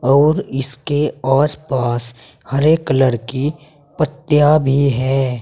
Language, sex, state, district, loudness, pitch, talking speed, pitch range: Hindi, male, Uttar Pradesh, Saharanpur, -16 LUFS, 140 Hz, 110 wpm, 130-150 Hz